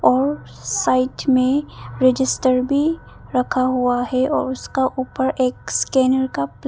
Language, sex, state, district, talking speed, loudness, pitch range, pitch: Hindi, female, Arunachal Pradesh, Papum Pare, 125 wpm, -19 LUFS, 255-265 Hz, 260 Hz